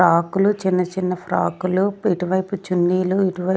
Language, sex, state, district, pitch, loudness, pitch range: Telugu, female, Andhra Pradesh, Sri Satya Sai, 185 Hz, -20 LUFS, 180-190 Hz